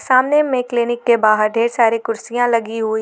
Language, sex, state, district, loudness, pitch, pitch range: Hindi, female, Jharkhand, Garhwa, -16 LUFS, 235 Hz, 225-245 Hz